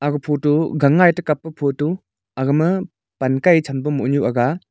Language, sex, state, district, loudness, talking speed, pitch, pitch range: Wancho, male, Arunachal Pradesh, Longding, -18 LUFS, 155 wpm, 145 Hz, 135-160 Hz